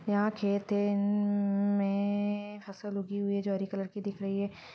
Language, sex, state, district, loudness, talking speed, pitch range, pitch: Hindi, female, Chhattisgarh, Rajnandgaon, -31 LUFS, 190 wpm, 200-205 Hz, 200 Hz